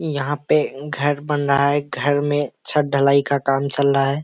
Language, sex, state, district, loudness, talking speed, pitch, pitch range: Hindi, male, Bihar, Kishanganj, -19 LUFS, 210 wpm, 140 Hz, 140-145 Hz